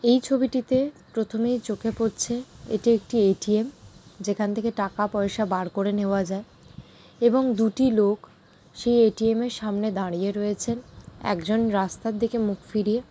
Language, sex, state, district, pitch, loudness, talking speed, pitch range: Bengali, female, West Bengal, Jalpaiguri, 220 Hz, -25 LUFS, 135 wpm, 205-235 Hz